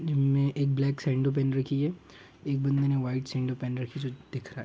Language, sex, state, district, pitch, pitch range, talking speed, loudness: Hindi, male, Uttar Pradesh, Gorakhpur, 135 Hz, 130-140 Hz, 235 wpm, -29 LUFS